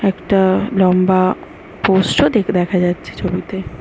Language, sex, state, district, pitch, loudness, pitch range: Bengali, male, West Bengal, North 24 Parganas, 190 Hz, -16 LUFS, 185-195 Hz